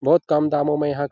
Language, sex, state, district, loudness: Hindi, male, Bihar, Jahanabad, -20 LUFS